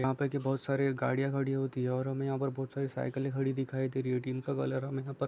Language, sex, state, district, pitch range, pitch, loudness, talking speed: Hindi, male, Chhattisgarh, Bastar, 130-135 Hz, 135 Hz, -33 LUFS, 305 wpm